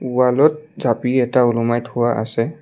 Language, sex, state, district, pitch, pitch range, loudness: Assamese, male, Assam, Kamrup Metropolitan, 125 Hz, 120-130 Hz, -18 LUFS